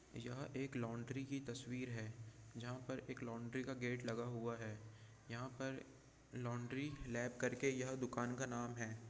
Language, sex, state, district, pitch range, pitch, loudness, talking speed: Hindi, male, Bihar, Darbhanga, 115-130 Hz, 120 Hz, -46 LUFS, 165 wpm